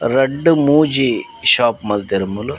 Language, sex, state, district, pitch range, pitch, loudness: Tulu, male, Karnataka, Dakshina Kannada, 105-145 Hz, 135 Hz, -15 LUFS